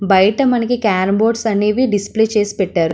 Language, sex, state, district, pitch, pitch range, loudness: Telugu, female, Andhra Pradesh, Visakhapatnam, 210 Hz, 195-225 Hz, -15 LUFS